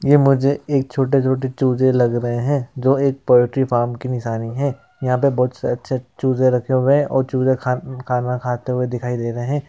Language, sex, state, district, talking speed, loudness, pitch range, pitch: Hindi, male, Bihar, Jamui, 205 wpm, -19 LUFS, 125-135 Hz, 130 Hz